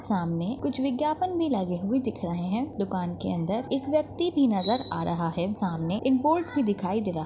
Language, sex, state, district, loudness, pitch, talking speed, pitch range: Hindi, female, Chhattisgarh, Bastar, -27 LUFS, 220 Hz, 225 wpm, 180-270 Hz